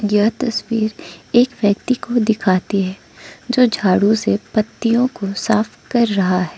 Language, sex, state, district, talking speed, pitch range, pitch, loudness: Hindi, female, Arunachal Pradesh, Lower Dibang Valley, 145 wpm, 200-235 Hz, 215 Hz, -17 LUFS